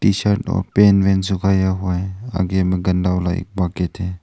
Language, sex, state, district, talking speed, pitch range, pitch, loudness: Hindi, male, Arunachal Pradesh, Longding, 170 wpm, 90-95 Hz, 95 Hz, -18 LUFS